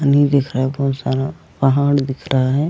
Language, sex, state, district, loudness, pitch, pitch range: Hindi, female, Goa, North and South Goa, -18 LUFS, 135 Hz, 135-140 Hz